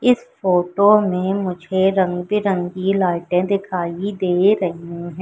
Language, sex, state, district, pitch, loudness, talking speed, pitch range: Hindi, female, Madhya Pradesh, Katni, 185 Hz, -19 LUFS, 125 wpm, 180-200 Hz